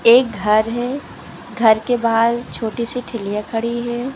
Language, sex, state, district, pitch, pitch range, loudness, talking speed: Hindi, female, Uttar Pradesh, Lucknow, 235 Hz, 220-240 Hz, -18 LUFS, 160 wpm